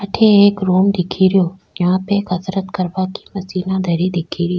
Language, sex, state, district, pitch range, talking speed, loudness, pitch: Rajasthani, female, Rajasthan, Nagaur, 180-195 Hz, 185 wpm, -16 LUFS, 185 Hz